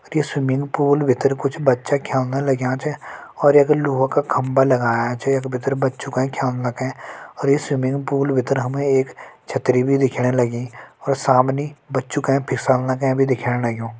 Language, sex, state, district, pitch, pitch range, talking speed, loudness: Hindi, male, Uttarakhand, Tehri Garhwal, 135 Hz, 125-140 Hz, 180 wpm, -20 LUFS